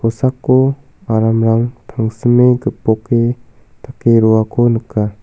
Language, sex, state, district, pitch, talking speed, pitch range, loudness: Garo, male, Meghalaya, South Garo Hills, 115 Hz, 80 wpm, 110-125 Hz, -14 LUFS